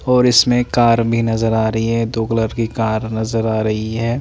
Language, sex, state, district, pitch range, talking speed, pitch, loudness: Hindi, male, Chandigarh, Chandigarh, 110-115 Hz, 240 wpm, 115 Hz, -16 LUFS